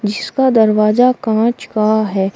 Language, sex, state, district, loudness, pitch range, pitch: Hindi, female, Uttar Pradesh, Shamli, -14 LUFS, 215-240 Hz, 220 Hz